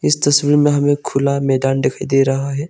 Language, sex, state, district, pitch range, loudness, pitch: Hindi, male, Arunachal Pradesh, Longding, 135-145 Hz, -16 LUFS, 140 Hz